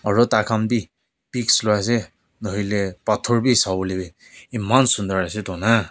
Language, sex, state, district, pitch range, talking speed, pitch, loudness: Nagamese, male, Nagaland, Kohima, 95-115 Hz, 150 wpm, 105 Hz, -20 LUFS